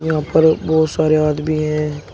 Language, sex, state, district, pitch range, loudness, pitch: Hindi, male, Uttar Pradesh, Shamli, 150-160 Hz, -16 LUFS, 155 Hz